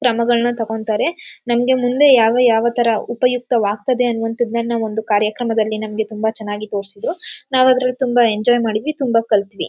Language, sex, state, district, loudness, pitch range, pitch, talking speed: Kannada, female, Karnataka, Mysore, -17 LUFS, 220-245 Hz, 235 Hz, 135 wpm